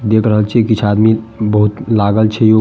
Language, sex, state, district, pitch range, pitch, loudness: Maithili, male, Bihar, Madhepura, 105-110 Hz, 110 Hz, -13 LUFS